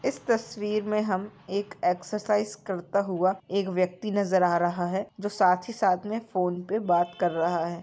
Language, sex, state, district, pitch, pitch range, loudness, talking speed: Hindi, female, West Bengal, Kolkata, 190 Hz, 180-210 Hz, -27 LUFS, 185 wpm